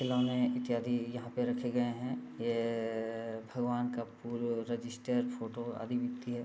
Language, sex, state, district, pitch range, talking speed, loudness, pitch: Hindi, male, Bihar, East Champaran, 115-125 Hz, 160 wpm, -36 LUFS, 120 Hz